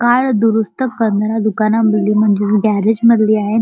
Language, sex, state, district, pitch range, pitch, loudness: Marathi, male, Maharashtra, Chandrapur, 210-225 Hz, 220 Hz, -14 LUFS